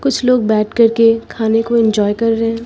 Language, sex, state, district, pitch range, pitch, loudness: Hindi, female, Uttar Pradesh, Lucknow, 220-230 Hz, 225 Hz, -14 LUFS